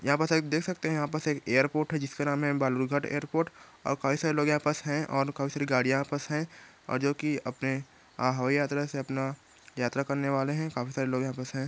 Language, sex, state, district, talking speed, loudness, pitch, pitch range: Hindi, male, Chhattisgarh, Korba, 240 wpm, -30 LUFS, 140 Hz, 135-150 Hz